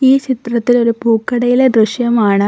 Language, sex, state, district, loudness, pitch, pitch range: Malayalam, female, Kerala, Kollam, -13 LUFS, 235 Hz, 230-250 Hz